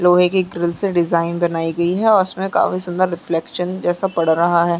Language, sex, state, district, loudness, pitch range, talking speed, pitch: Hindi, female, Chhattisgarh, Sarguja, -18 LUFS, 170-185 Hz, 210 wpm, 175 Hz